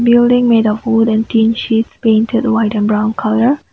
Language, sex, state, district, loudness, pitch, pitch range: English, female, Nagaland, Kohima, -13 LUFS, 225 Hz, 220-235 Hz